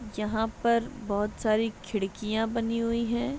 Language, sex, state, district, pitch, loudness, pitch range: Hindi, female, Bihar, Madhepura, 225 Hz, -29 LUFS, 215-230 Hz